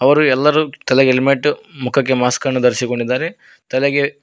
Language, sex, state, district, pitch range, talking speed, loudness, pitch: Kannada, male, Karnataka, Koppal, 125-145 Hz, 130 wpm, -16 LUFS, 135 Hz